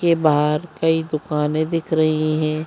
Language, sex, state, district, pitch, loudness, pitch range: Hindi, female, Madhya Pradesh, Bhopal, 155 Hz, -20 LUFS, 155-160 Hz